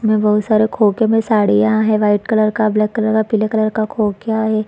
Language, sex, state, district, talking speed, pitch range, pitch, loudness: Hindi, female, Chhattisgarh, Rajnandgaon, 230 wpm, 210-220 Hz, 215 Hz, -15 LUFS